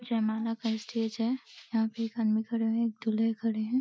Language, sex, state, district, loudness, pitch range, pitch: Hindi, female, Uttar Pradesh, Deoria, -31 LUFS, 220-230 Hz, 225 Hz